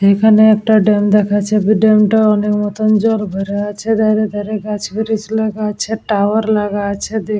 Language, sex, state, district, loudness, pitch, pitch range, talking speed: Bengali, female, West Bengal, Dakshin Dinajpur, -14 LUFS, 215 Hz, 205-220 Hz, 180 wpm